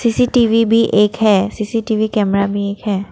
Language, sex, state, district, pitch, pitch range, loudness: Hindi, female, Assam, Kamrup Metropolitan, 215 Hz, 200-225 Hz, -15 LUFS